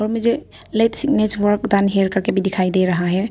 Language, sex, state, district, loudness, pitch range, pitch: Hindi, female, Arunachal Pradesh, Papum Pare, -18 LUFS, 190-225 Hz, 205 Hz